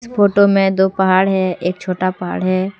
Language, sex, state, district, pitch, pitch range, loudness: Hindi, female, Jharkhand, Deoghar, 190 Hz, 185-195 Hz, -15 LUFS